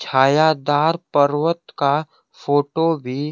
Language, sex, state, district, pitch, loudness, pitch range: Hindi, male, Bihar, Kaimur, 145 Hz, -19 LUFS, 140-160 Hz